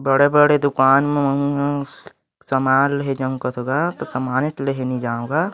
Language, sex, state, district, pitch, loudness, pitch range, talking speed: Chhattisgarhi, male, Chhattisgarh, Bilaspur, 135 Hz, -19 LUFS, 130-145 Hz, 185 wpm